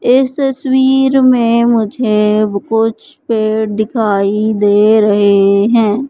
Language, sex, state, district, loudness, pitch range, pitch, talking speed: Hindi, male, Madhya Pradesh, Katni, -12 LUFS, 210-255 Hz, 220 Hz, 100 wpm